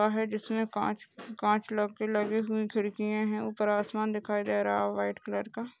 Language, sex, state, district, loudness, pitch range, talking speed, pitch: Hindi, female, Maharashtra, Sindhudurg, -31 LUFS, 210-220 Hz, 145 wpm, 215 Hz